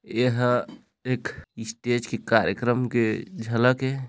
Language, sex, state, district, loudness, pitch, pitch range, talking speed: Chhattisgarhi, male, Chhattisgarh, Raigarh, -24 LUFS, 120 Hz, 115-125 Hz, 120 wpm